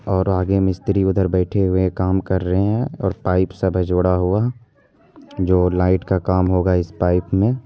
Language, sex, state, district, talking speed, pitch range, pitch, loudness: Hindi, male, Bihar, Purnia, 195 wpm, 90-95 Hz, 95 Hz, -19 LUFS